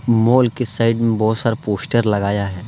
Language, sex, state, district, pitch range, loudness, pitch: Hindi, male, Jharkhand, Deoghar, 105-115 Hz, -17 LUFS, 115 Hz